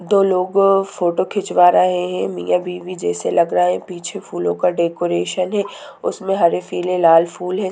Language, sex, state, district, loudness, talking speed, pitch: Hindi, female, Bihar, Sitamarhi, -18 LUFS, 200 wpm, 180 Hz